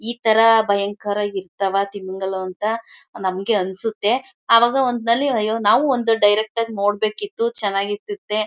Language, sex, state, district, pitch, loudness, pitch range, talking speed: Kannada, female, Karnataka, Mysore, 215 Hz, -19 LUFS, 200-230 Hz, 135 wpm